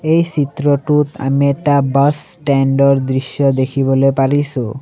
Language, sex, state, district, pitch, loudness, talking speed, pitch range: Assamese, male, Assam, Sonitpur, 140 Hz, -15 LUFS, 125 wpm, 135-145 Hz